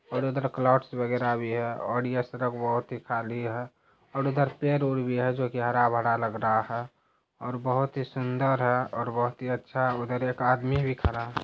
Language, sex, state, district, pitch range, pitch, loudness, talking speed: Hindi, male, Bihar, Araria, 120-130 Hz, 125 Hz, -28 LUFS, 210 wpm